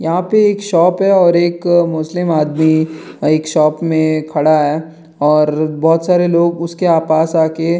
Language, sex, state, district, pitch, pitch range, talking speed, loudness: Hindi, male, Bihar, Jamui, 160 Hz, 155-175 Hz, 170 wpm, -13 LUFS